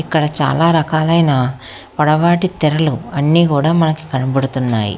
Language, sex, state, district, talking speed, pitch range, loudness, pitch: Telugu, female, Telangana, Hyderabad, 110 wpm, 135-160 Hz, -15 LUFS, 155 Hz